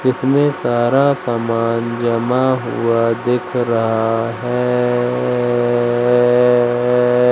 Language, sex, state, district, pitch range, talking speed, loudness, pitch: Hindi, male, Madhya Pradesh, Katni, 120-125 Hz, 65 wpm, -16 LUFS, 120 Hz